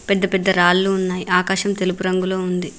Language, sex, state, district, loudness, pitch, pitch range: Telugu, female, Telangana, Mahabubabad, -18 LUFS, 185 Hz, 180-195 Hz